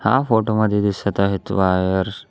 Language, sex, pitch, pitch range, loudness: Marathi, male, 100 Hz, 95-110 Hz, -19 LUFS